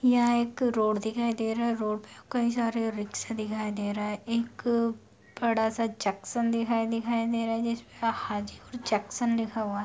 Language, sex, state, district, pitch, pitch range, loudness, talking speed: Hindi, female, Bihar, Madhepura, 230 Hz, 215-235 Hz, -29 LUFS, 195 wpm